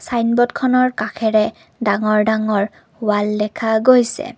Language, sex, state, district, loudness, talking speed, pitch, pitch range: Assamese, female, Assam, Kamrup Metropolitan, -17 LUFS, 95 wpm, 220 Hz, 210-235 Hz